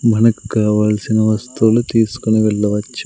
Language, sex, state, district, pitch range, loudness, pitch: Telugu, male, Andhra Pradesh, Sri Satya Sai, 105-115 Hz, -15 LUFS, 110 Hz